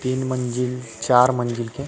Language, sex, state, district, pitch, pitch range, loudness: Chhattisgarhi, male, Chhattisgarh, Rajnandgaon, 125 Hz, 120-130 Hz, -21 LUFS